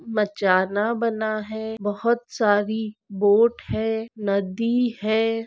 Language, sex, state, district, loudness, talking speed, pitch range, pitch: Hindi, female, Maharashtra, Aurangabad, -23 LUFS, 100 wpm, 205-225 Hz, 220 Hz